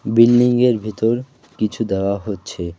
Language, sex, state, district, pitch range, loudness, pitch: Bengali, male, West Bengal, Alipurduar, 100-120 Hz, -18 LUFS, 110 Hz